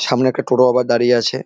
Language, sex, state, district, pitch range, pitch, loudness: Bengali, male, West Bengal, Jalpaiguri, 120-130 Hz, 125 Hz, -15 LUFS